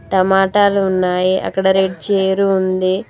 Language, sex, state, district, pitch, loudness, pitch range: Telugu, female, Telangana, Mahabubabad, 190 Hz, -15 LUFS, 185-195 Hz